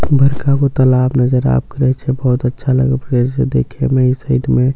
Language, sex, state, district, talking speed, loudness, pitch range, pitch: Maithili, male, Bihar, Katihar, 200 wpm, -14 LUFS, 125-135 Hz, 130 Hz